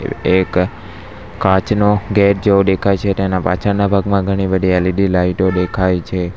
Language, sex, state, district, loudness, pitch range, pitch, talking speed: Gujarati, male, Gujarat, Valsad, -15 LUFS, 90-100 Hz, 95 Hz, 140 wpm